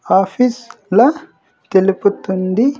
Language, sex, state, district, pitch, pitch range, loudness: Telugu, male, Andhra Pradesh, Sri Satya Sai, 205 Hz, 190-250 Hz, -15 LUFS